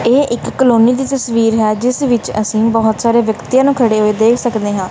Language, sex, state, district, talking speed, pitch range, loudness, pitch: Punjabi, female, Punjab, Kapurthala, 220 wpm, 220-250 Hz, -13 LUFS, 230 Hz